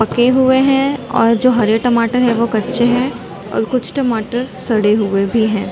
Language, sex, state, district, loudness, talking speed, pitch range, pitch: Hindi, female, Chhattisgarh, Bilaspur, -15 LUFS, 190 wpm, 220-255 Hz, 240 Hz